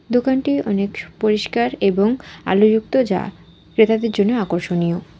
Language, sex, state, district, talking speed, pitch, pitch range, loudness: Bengali, female, West Bengal, Alipurduar, 105 wpm, 215 Hz, 195-235 Hz, -19 LUFS